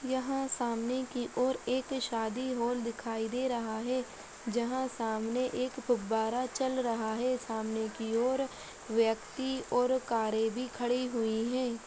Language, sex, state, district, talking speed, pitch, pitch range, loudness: Hindi, female, Bihar, Madhepura, 140 wpm, 245 Hz, 225-255 Hz, -33 LUFS